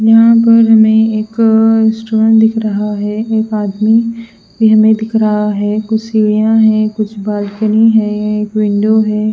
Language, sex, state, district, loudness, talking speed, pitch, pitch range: Hindi, female, Punjab, Fazilka, -11 LUFS, 160 wpm, 220 Hz, 210-220 Hz